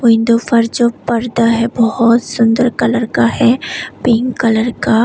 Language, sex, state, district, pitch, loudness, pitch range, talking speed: Hindi, female, Tripura, West Tripura, 230 Hz, -13 LUFS, 225-235 Hz, 155 wpm